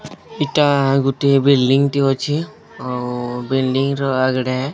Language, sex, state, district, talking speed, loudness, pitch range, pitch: Odia, male, Odisha, Sambalpur, 125 wpm, -17 LUFS, 130-140 Hz, 135 Hz